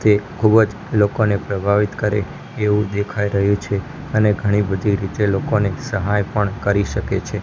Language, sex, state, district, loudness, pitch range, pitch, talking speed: Gujarati, male, Gujarat, Gandhinagar, -19 LUFS, 100-105 Hz, 105 Hz, 155 wpm